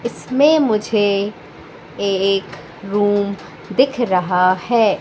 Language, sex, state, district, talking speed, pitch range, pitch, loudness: Hindi, female, Madhya Pradesh, Katni, 85 wpm, 195-235 Hz, 205 Hz, -17 LUFS